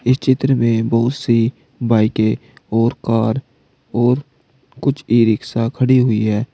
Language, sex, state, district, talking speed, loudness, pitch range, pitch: Hindi, male, Uttar Pradesh, Saharanpur, 140 wpm, -17 LUFS, 115-130 Hz, 120 Hz